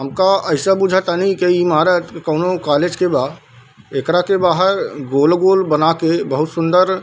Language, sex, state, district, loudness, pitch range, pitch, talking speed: Hindi, male, Bihar, Darbhanga, -15 LUFS, 155-185 Hz, 175 Hz, 170 wpm